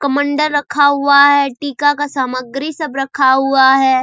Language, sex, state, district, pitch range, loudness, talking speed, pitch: Hindi, female, Bihar, Saharsa, 270-285 Hz, -13 LUFS, 165 wpm, 280 Hz